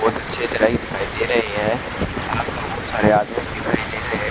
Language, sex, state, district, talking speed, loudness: Hindi, male, Haryana, Charkhi Dadri, 220 wpm, -21 LUFS